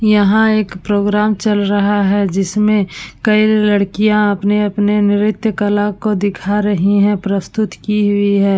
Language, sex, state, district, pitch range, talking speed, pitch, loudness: Hindi, female, Uttar Pradesh, Budaun, 200-210 Hz, 135 wpm, 205 Hz, -14 LUFS